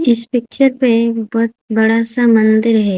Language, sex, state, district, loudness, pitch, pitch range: Hindi, female, Odisha, Khordha, -13 LUFS, 230 Hz, 220-240 Hz